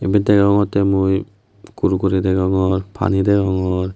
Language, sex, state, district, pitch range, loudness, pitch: Chakma, male, Tripura, West Tripura, 95-100 Hz, -17 LUFS, 95 Hz